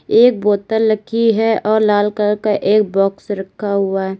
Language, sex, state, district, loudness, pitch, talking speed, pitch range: Hindi, female, Uttar Pradesh, Lalitpur, -15 LUFS, 210 Hz, 185 wpm, 200-220 Hz